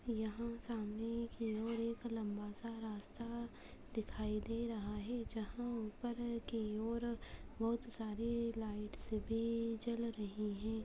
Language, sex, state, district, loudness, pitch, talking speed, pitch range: Hindi, female, Uttarakhand, Tehri Garhwal, -43 LUFS, 230 Hz, 125 wpm, 215-235 Hz